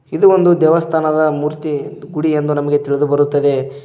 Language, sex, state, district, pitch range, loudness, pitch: Kannada, male, Karnataka, Koppal, 145-160 Hz, -15 LUFS, 150 Hz